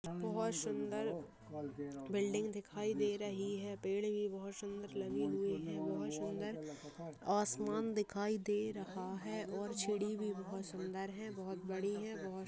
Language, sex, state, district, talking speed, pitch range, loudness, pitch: Hindi, female, Bihar, Purnia, 150 wpm, 185-210 Hz, -41 LUFS, 200 Hz